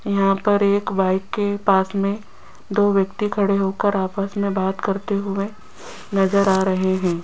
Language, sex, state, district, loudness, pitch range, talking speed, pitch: Hindi, female, Rajasthan, Jaipur, -20 LUFS, 190-205 Hz, 165 wpm, 195 Hz